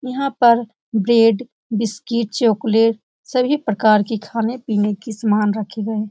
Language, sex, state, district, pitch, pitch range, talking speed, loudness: Hindi, female, Uttar Pradesh, Etah, 225 Hz, 215-235 Hz, 145 wpm, -18 LUFS